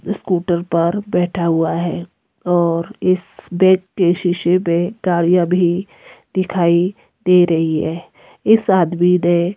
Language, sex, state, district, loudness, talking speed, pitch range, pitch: Hindi, female, Himachal Pradesh, Shimla, -16 LUFS, 125 wpm, 170-185 Hz, 175 Hz